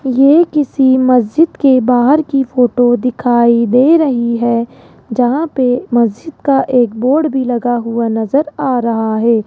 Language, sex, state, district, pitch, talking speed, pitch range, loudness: Hindi, female, Rajasthan, Jaipur, 250 Hz, 150 wpm, 235-275 Hz, -12 LUFS